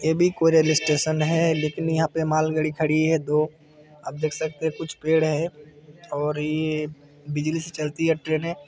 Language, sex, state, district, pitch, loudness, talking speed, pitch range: Hindi, male, Chhattisgarh, Bilaspur, 155 Hz, -23 LUFS, 195 wpm, 150-160 Hz